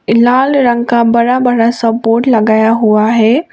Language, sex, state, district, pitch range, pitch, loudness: Hindi, female, Sikkim, Gangtok, 225-245 Hz, 235 Hz, -10 LUFS